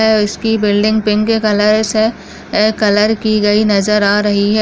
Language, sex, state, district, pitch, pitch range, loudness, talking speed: Hindi, female, Rajasthan, Nagaur, 215 Hz, 205-220 Hz, -13 LUFS, 180 wpm